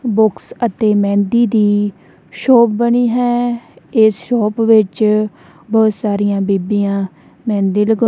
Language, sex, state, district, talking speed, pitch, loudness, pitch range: Punjabi, female, Punjab, Kapurthala, 110 wpm, 215 Hz, -14 LUFS, 205-235 Hz